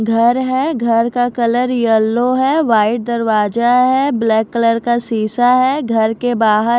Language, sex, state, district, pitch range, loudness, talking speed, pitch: Hindi, female, Odisha, Khordha, 225-250 Hz, -14 LUFS, 170 wpm, 235 Hz